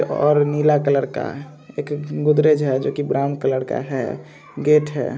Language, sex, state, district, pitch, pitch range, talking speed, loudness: Hindi, male, Andhra Pradesh, Visakhapatnam, 145 Hz, 140-150 Hz, 185 wpm, -19 LUFS